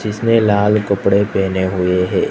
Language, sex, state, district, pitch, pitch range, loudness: Hindi, male, Gujarat, Gandhinagar, 100 Hz, 95-105 Hz, -15 LUFS